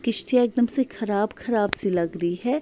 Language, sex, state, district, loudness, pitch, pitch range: Hindi, female, Bihar, Patna, -23 LUFS, 225 Hz, 200-245 Hz